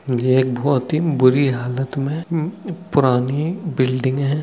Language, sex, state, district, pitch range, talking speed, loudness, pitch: Hindi, male, West Bengal, Dakshin Dinajpur, 130-160 Hz, 165 wpm, -19 LUFS, 140 Hz